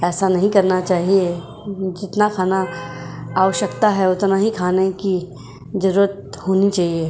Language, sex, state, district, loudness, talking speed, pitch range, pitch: Hindi, female, Uttar Pradesh, Jyotiba Phule Nagar, -18 LUFS, 125 wpm, 175-195 Hz, 190 Hz